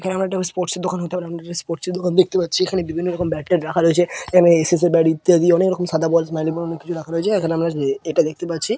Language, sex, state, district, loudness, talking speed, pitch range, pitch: Bengali, male, West Bengal, Purulia, -19 LUFS, 255 wpm, 165-180 Hz, 175 Hz